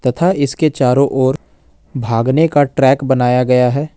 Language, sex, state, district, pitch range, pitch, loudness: Hindi, male, Jharkhand, Ranchi, 125-145 Hz, 130 Hz, -14 LUFS